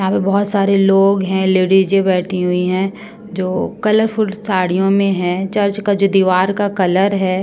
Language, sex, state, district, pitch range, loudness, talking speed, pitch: Hindi, female, Uttar Pradesh, Ghazipur, 185-200 Hz, -15 LUFS, 180 wpm, 195 Hz